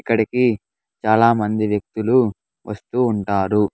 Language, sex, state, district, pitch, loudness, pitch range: Telugu, male, Andhra Pradesh, Sri Satya Sai, 110 Hz, -19 LUFS, 105-115 Hz